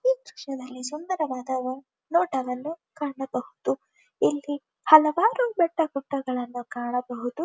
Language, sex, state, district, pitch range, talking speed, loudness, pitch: Kannada, female, Karnataka, Dharwad, 255-325 Hz, 80 wpm, -26 LUFS, 275 Hz